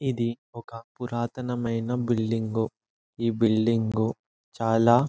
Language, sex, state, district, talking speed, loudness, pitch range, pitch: Telugu, male, Andhra Pradesh, Anantapur, 105 wpm, -27 LUFS, 115-120 Hz, 115 Hz